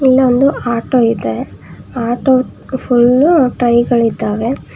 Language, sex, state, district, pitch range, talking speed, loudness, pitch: Kannada, female, Karnataka, Bangalore, 235-260 Hz, 90 wpm, -13 LUFS, 245 Hz